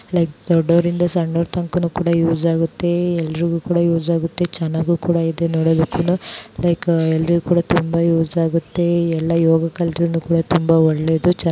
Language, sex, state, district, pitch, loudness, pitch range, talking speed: Kannada, female, Karnataka, Bijapur, 170 Hz, -18 LUFS, 165-175 Hz, 110 wpm